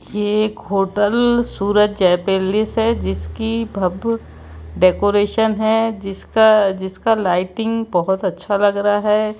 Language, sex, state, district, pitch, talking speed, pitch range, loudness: Hindi, male, Madhya Pradesh, Bhopal, 205 Hz, 120 wpm, 190-220 Hz, -17 LUFS